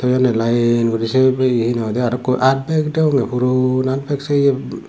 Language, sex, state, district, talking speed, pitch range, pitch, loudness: Chakma, male, Tripura, Dhalai, 160 wpm, 120-135 Hz, 130 Hz, -17 LUFS